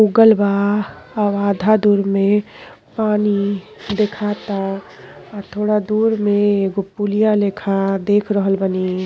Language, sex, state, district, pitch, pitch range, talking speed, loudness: Bhojpuri, female, Uttar Pradesh, Ghazipur, 205 Hz, 200-210 Hz, 120 wpm, -17 LUFS